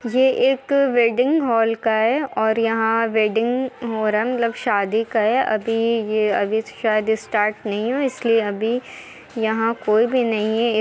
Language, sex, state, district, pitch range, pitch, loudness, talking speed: Hindi, female, Bihar, Muzaffarpur, 220-245 Hz, 225 Hz, -20 LUFS, 155 wpm